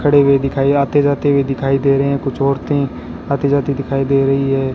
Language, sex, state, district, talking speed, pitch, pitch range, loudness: Hindi, male, Rajasthan, Bikaner, 225 wpm, 140 Hz, 135-140 Hz, -15 LUFS